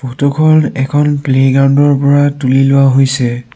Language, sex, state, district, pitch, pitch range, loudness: Assamese, male, Assam, Sonitpur, 135 Hz, 135-145 Hz, -10 LUFS